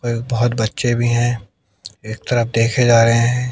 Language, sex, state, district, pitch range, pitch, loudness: Hindi, male, Haryana, Jhajjar, 115-120 Hz, 120 Hz, -16 LUFS